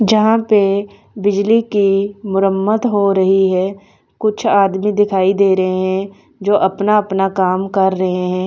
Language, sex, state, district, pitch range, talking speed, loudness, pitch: Hindi, female, Haryana, Charkhi Dadri, 190-205 Hz, 150 wpm, -15 LUFS, 195 Hz